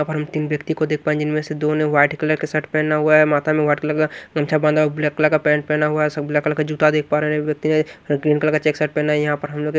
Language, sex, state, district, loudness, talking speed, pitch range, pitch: Hindi, male, Maharashtra, Washim, -19 LUFS, 325 wpm, 150-155 Hz, 150 Hz